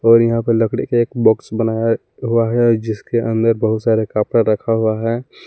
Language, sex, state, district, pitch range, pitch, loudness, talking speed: Hindi, male, Jharkhand, Palamu, 110-115 Hz, 115 Hz, -17 LUFS, 185 wpm